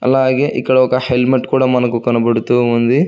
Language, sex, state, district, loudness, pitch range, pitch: Telugu, male, Telangana, Hyderabad, -14 LUFS, 120-130 Hz, 125 Hz